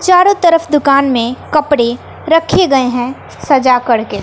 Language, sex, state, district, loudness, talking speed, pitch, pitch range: Hindi, female, Bihar, West Champaran, -12 LUFS, 140 wpm, 275 Hz, 245-325 Hz